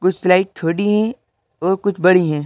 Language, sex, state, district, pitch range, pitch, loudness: Hindi, male, Madhya Pradesh, Bhopal, 180-200 Hz, 185 Hz, -17 LUFS